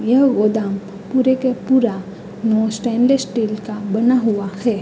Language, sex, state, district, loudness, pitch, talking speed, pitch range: Hindi, female, Uttar Pradesh, Hamirpur, -18 LUFS, 220 Hz, 125 wpm, 205-250 Hz